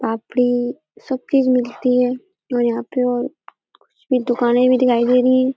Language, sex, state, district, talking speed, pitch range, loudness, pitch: Hindi, female, Uttar Pradesh, Etah, 185 wpm, 245-260 Hz, -18 LUFS, 250 Hz